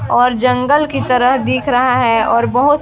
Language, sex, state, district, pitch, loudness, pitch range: Hindi, female, Chhattisgarh, Sarguja, 250 Hz, -13 LUFS, 245-265 Hz